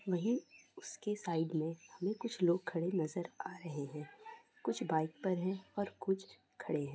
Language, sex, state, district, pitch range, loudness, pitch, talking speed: Hindi, female, Jharkhand, Jamtara, 160-205 Hz, -39 LUFS, 180 Hz, 170 wpm